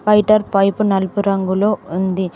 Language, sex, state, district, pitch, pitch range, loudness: Telugu, female, Telangana, Mahabubabad, 195 Hz, 190-210 Hz, -16 LUFS